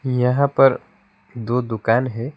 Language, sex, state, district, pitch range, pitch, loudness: Hindi, male, West Bengal, Alipurduar, 120-135 Hz, 125 Hz, -19 LUFS